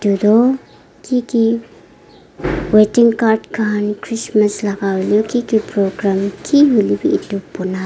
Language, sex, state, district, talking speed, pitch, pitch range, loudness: Nagamese, female, Nagaland, Dimapur, 105 wpm, 215 Hz, 200-230 Hz, -16 LUFS